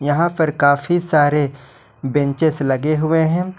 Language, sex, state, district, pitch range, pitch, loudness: Hindi, male, Jharkhand, Ranchi, 140-160 Hz, 150 Hz, -17 LUFS